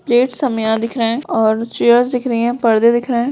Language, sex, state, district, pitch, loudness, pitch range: Hindi, female, Bihar, Purnia, 235 Hz, -15 LUFS, 230-245 Hz